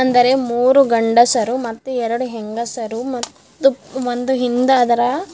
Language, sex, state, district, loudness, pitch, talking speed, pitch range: Kannada, female, Karnataka, Bidar, -17 LUFS, 245 Hz, 115 wpm, 235-260 Hz